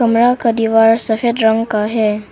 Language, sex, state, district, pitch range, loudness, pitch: Hindi, female, Arunachal Pradesh, Papum Pare, 220-230 Hz, -14 LUFS, 225 Hz